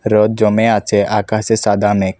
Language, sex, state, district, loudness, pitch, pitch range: Bengali, male, Assam, Kamrup Metropolitan, -14 LUFS, 105 Hz, 105-110 Hz